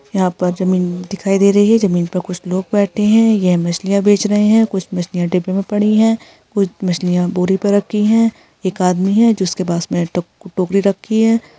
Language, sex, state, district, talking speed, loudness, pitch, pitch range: Hindi, female, Bihar, Jahanabad, 200 wpm, -15 LUFS, 195 Hz, 180-210 Hz